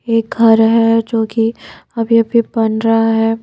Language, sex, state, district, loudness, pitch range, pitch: Hindi, female, Bihar, Patna, -13 LUFS, 225-230 Hz, 225 Hz